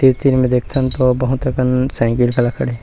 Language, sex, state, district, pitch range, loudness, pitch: Chhattisgarhi, male, Chhattisgarh, Rajnandgaon, 125-130 Hz, -16 LUFS, 130 Hz